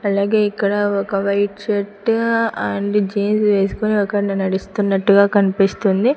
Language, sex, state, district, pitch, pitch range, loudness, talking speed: Telugu, female, Andhra Pradesh, Sri Satya Sai, 205 Hz, 200-210 Hz, -17 LUFS, 115 wpm